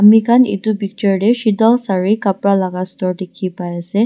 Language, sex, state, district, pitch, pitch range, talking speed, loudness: Nagamese, female, Nagaland, Dimapur, 200 Hz, 185-220 Hz, 150 wpm, -15 LUFS